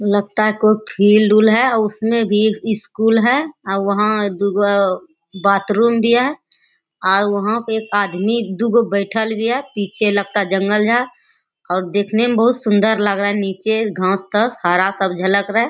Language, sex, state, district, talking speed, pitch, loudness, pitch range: Hindi, female, Bihar, Bhagalpur, 175 wpm, 215 Hz, -16 LUFS, 200-230 Hz